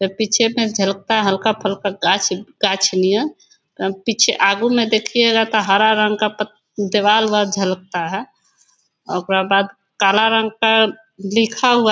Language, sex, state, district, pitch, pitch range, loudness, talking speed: Hindi, female, Bihar, Bhagalpur, 210 Hz, 195-225 Hz, -17 LUFS, 165 wpm